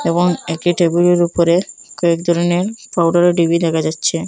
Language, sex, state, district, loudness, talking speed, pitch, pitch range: Bengali, female, Assam, Hailakandi, -15 LUFS, 170 wpm, 170 Hz, 170-175 Hz